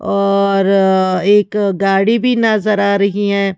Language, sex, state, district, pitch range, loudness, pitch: Hindi, female, Haryana, Charkhi Dadri, 195-210 Hz, -13 LUFS, 200 Hz